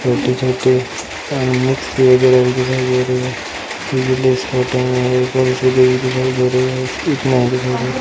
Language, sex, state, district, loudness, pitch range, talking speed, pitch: Hindi, male, Rajasthan, Bikaner, -16 LUFS, 125-130 Hz, 105 wpm, 130 Hz